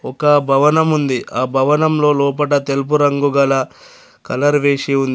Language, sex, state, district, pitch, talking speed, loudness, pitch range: Telugu, male, Telangana, Adilabad, 145 Hz, 140 wpm, -15 LUFS, 135-150 Hz